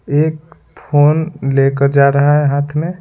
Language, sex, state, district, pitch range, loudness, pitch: Hindi, male, Bihar, Patna, 140-155 Hz, -13 LUFS, 145 Hz